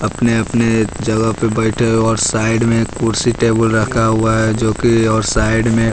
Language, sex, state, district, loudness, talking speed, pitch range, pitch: Hindi, male, Bihar, West Champaran, -14 LUFS, 190 wpm, 110-115 Hz, 115 Hz